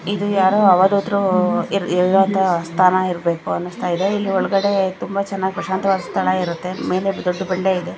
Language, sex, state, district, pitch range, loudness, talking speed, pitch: Kannada, female, Karnataka, Dakshina Kannada, 180-195 Hz, -18 LUFS, 145 wpm, 190 Hz